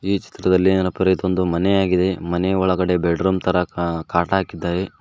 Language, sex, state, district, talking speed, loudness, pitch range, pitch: Kannada, male, Karnataka, Koppal, 155 wpm, -19 LUFS, 85-95 Hz, 90 Hz